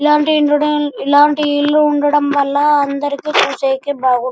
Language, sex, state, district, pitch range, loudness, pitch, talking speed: Telugu, male, Andhra Pradesh, Anantapur, 280-295 Hz, -14 LUFS, 290 Hz, 140 wpm